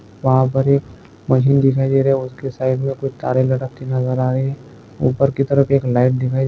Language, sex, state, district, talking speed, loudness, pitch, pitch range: Hindi, male, Goa, North and South Goa, 230 wpm, -17 LUFS, 130 Hz, 130-135 Hz